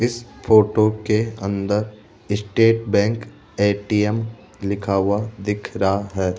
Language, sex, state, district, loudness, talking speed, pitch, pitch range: Hindi, male, Rajasthan, Jaipur, -20 LUFS, 115 wpm, 105 Hz, 100-110 Hz